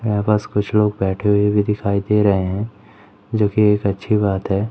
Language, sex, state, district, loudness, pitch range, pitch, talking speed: Hindi, male, Madhya Pradesh, Umaria, -18 LUFS, 100-105 Hz, 105 Hz, 215 wpm